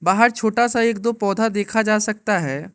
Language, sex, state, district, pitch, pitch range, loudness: Hindi, male, Arunachal Pradesh, Lower Dibang Valley, 215 Hz, 205-230 Hz, -19 LUFS